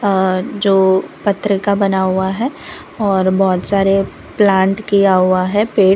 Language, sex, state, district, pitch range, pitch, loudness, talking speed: Hindi, female, Gujarat, Valsad, 190-205 Hz, 195 Hz, -15 LUFS, 150 wpm